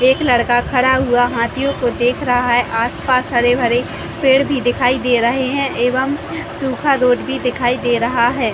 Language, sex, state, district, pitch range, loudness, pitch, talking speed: Hindi, female, Chhattisgarh, Raigarh, 240-265 Hz, -16 LUFS, 250 Hz, 170 wpm